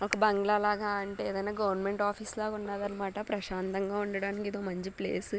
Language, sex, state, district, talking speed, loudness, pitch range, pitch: Telugu, female, Telangana, Nalgonda, 180 wpm, -32 LUFS, 195-210 Hz, 205 Hz